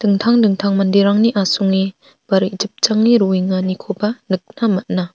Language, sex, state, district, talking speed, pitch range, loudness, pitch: Garo, female, Meghalaya, North Garo Hills, 105 wpm, 190-215 Hz, -16 LUFS, 200 Hz